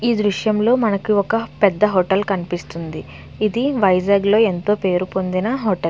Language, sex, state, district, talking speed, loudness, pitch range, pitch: Telugu, female, Andhra Pradesh, Visakhapatnam, 165 wpm, -18 LUFS, 185-215 Hz, 200 Hz